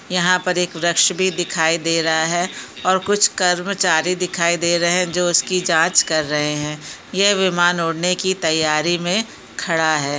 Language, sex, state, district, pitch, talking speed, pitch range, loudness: Hindi, female, Chhattisgarh, Bilaspur, 175 Hz, 190 wpm, 160-185 Hz, -18 LUFS